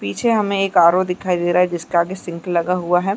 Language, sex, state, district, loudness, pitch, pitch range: Hindi, female, Chhattisgarh, Bastar, -18 LUFS, 180 Hz, 170-190 Hz